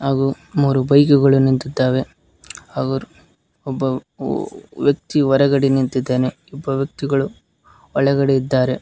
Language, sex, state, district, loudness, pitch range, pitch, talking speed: Kannada, male, Karnataka, Koppal, -18 LUFS, 130-140 Hz, 135 Hz, 90 wpm